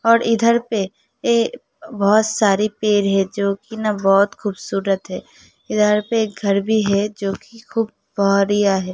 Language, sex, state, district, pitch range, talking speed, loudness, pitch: Hindi, female, Uttar Pradesh, Hamirpur, 200-220 Hz, 150 wpm, -18 LUFS, 210 Hz